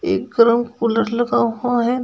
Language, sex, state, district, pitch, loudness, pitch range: Hindi, female, Uttar Pradesh, Shamli, 235 Hz, -18 LUFS, 230-240 Hz